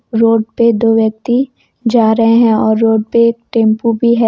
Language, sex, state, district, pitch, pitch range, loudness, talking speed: Hindi, female, Jharkhand, Deoghar, 230 Hz, 225-235 Hz, -12 LUFS, 180 wpm